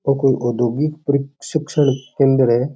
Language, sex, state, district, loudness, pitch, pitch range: Rajasthani, male, Rajasthan, Churu, -18 LUFS, 135 Hz, 125-145 Hz